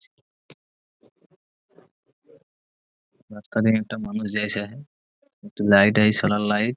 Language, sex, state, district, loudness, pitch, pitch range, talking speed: Bengali, male, West Bengal, Purulia, -21 LUFS, 105 Hz, 105-130 Hz, 90 wpm